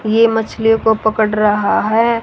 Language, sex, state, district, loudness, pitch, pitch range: Hindi, female, Haryana, Rohtak, -14 LUFS, 220 Hz, 215-225 Hz